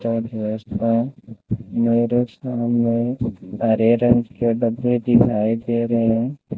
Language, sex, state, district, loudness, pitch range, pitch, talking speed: Hindi, male, Rajasthan, Bikaner, -20 LUFS, 115-120 Hz, 115 Hz, 90 wpm